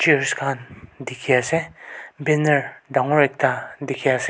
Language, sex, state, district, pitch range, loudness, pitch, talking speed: Nagamese, male, Nagaland, Kohima, 125-150 Hz, -21 LUFS, 135 Hz, 125 wpm